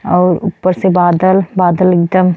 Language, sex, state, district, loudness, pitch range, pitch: Bhojpuri, female, Uttar Pradesh, Deoria, -12 LUFS, 180-185 Hz, 180 Hz